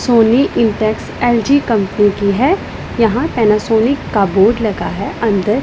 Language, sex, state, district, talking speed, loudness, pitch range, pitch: Hindi, female, Punjab, Pathankot, 140 wpm, -14 LUFS, 210-240 Hz, 225 Hz